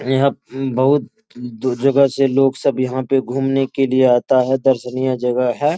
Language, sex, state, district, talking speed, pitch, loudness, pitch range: Hindi, male, Bihar, Araria, 175 wpm, 135 Hz, -17 LUFS, 130-135 Hz